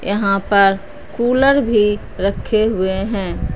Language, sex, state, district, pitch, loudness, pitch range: Hindi, female, Punjab, Fazilka, 200 Hz, -16 LUFS, 195-220 Hz